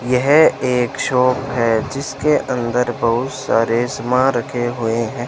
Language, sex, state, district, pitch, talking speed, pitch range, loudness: Hindi, male, Rajasthan, Bikaner, 125 Hz, 135 wpm, 120-130 Hz, -17 LUFS